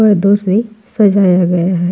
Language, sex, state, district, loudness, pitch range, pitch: Hindi, female, Uttar Pradesh, Jalaun, -12 LUFS, 180-210 Hz, 200 Hz